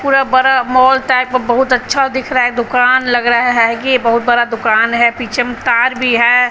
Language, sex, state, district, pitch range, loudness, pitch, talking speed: Hindi, female, Bihar, Patna, 240-255 Hz, -12 LUFS, 245 Hz, 220 wpm